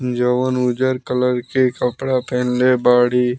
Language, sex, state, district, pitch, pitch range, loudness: Bhojpuri, male, Bihar, Muzaffarpur, 125 Hz, 125-130 Hz, -17 LUFS